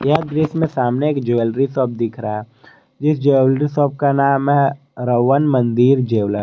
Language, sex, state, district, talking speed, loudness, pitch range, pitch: Hindi, male, Jharkhand, Garhwa, 175 wpm, -17 LUFS, 120-145 Hz, 135 Hz